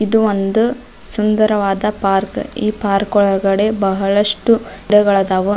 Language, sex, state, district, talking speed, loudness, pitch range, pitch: Kannada, female, Karnataka, Dharwad, 95 wpm, -15 LUFS, 195-215 Hz, 205 Hz